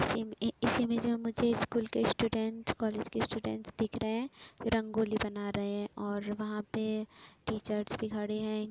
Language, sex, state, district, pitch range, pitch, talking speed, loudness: Hindi, female, Uttar Pradesh, Etah, 210-230 Hz, 220 Hz, 160 wpm, -34 LUFS